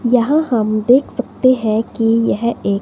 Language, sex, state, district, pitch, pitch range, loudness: Hindi, female, Himachal Pradesh, Shimla, 235 Hz, 220-250 Hz, -15 LUFS